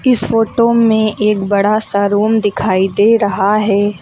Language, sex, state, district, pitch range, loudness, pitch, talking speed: Hindi, female, Uttar Pradesh, Lucknow, 200-225 Hz, -13 LUFS, 210 Hz, 165 wpm